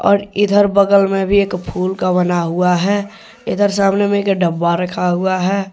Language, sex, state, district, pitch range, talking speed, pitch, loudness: Hindi, male, Jharkhand, Deoghar, 180-200 Hz, 190 wpm, 195 Hz, -15 LUFS